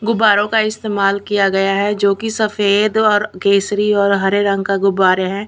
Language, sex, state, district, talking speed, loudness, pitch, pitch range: Hindi, female, Chhattisgarh, Raipur, 185 wpm, -15 LUFS, 200 Hz, 195-210 Hz